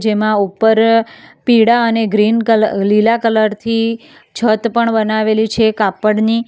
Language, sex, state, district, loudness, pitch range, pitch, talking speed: Gujarati, female, Gujarat, Valsad, -13 LUFS, 215-230 Hz, 220 Hz, 120 wpm